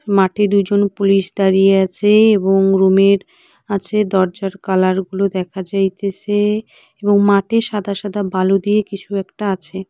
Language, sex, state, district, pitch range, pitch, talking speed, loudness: Bengali, female, West Bengal, Cooch Behar, 190-205 Hz, 195 Hz, 135 wpm, -16 LUFS